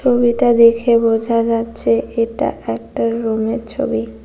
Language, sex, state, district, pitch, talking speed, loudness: Bengali, female, West Bengal, Cooch Behar, 230 Hz, 115 wpm, -16 LUFS